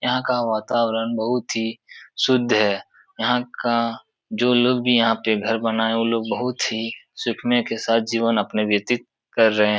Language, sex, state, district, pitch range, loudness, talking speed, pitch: Hindi, male, Uttar Pradesh, Etah, 110-120 Hz, -21 LUFS, 185 wpm, 115 Hz